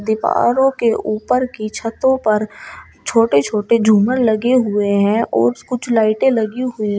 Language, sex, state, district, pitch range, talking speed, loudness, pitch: Hindi, female, Uttar Pradesh, Shamli, 215-250 Hz, 155 wpm, -16 LUFS, 225 Hz